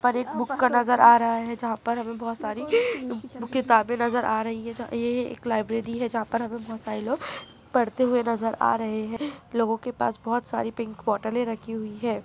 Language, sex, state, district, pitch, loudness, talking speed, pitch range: Chhattisgarhi, female, Chhattisgarh, Bilaspur, 235 Hz, -26 LUFS, 225 wpm, 225-245 Hz